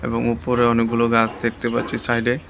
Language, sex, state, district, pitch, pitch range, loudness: Bengali, male, Tripura, West Tripura, 115 Hz, 115-120 Hz, -20 LUFS